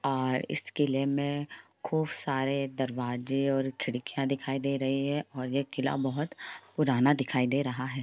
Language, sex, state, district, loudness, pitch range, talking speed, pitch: Hindi, female, Bihar, Jamui, -30 LUFS, 130-140 Hz, 170 wpm, 135 Hz